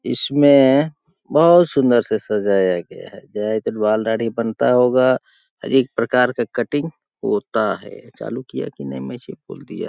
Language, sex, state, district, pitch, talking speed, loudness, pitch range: Hindi, male, Chhattisgarh, Balrampur, 125 Hz, 160 wpm, -18 LUFS, 110-140 Hz